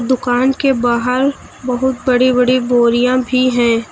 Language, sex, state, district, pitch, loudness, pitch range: Hindi, female, Uttar Pradesh, Lucknow, 250 Hz, -14 LUFS, 245-255 Hz